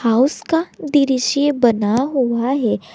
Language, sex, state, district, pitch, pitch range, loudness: Hindi, female, Jharkhand, Garhwa, 260 Hz, 235-285 Hz, -17 LUFS